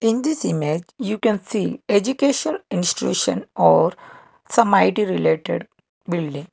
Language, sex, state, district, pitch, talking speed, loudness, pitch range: English, male, Karnataka, Bangalore, 210 Hz, 120 wpm, -20 LUFS, 170-280 Hz